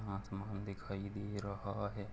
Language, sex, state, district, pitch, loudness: Hindi, male, Jharkhand, Sahebganj, 100 Hz, -43 LUFS